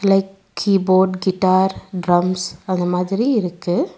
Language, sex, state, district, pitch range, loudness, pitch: Tamil, female, Tamil Nadu, Nilgiris, 180-195 Hz, -18 LUFS, 185 Hz